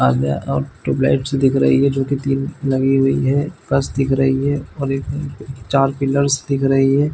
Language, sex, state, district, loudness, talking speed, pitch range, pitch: Hindi, male, Chhattisgarh, Bilaspur, -18 LUFS, 200 wpm, 135-140 Hz, 135 Hz